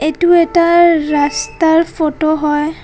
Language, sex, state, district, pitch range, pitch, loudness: Assamese, female, Assam, Kamrup Metropolitan, 300-340 Hz, 320 Hz, -12 LUFS